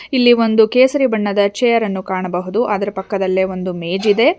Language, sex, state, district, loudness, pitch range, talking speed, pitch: Kannada, female, Karnataka, Bangalore, -16 LUFS, 190-235 Hz, 165 wpm, 205 Hz